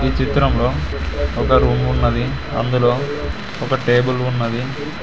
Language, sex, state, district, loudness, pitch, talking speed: Telugu, male, Telangana, Mahabubabad, -18 LUFS, 120 Hz, 110 wpm